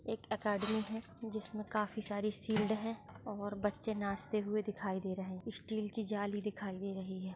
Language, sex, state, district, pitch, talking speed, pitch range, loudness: Hindi, female, Chhattisgarh, Sarguja, 210 Hz, 185 wpm, 200-215 Hz, -39 LUFS